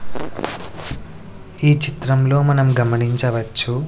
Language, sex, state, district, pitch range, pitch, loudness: Telugu, male, Andhra Pradesh, Sri Satya Sai, 120-145 Hz, 130 Hz, -17 LUFS